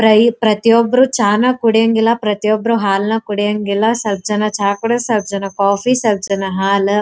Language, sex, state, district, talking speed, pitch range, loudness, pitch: Kannada, female, Karnataka, Dharwad, 135 wpm, 200-230 Hz, -15 LUFS, 215 Hz